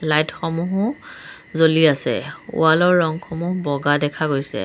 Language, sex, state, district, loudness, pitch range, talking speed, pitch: Assamese, male, Assam, Sonitpur, -19 LUFS, 150-175 Hz, 130 wpm, 160 Hz